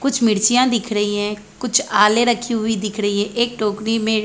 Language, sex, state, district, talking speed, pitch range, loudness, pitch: Hindi, female, Chhattisgarh, Bilaspur, 210 wpm, 210-235 Hz, -18 LUFS, 220 Hz